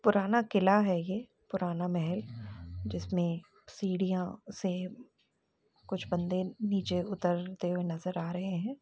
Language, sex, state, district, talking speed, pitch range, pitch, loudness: Hindi, female, Uttar Pradesh, Jalaun, 130 wpm, 175-195 Hz, 185 Hz, -33 LUFS